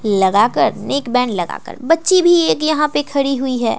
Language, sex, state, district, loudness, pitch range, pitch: Hindi, female, Bihar, West Champaran, -15 LUFS, 225-305 Hz, 275 Hz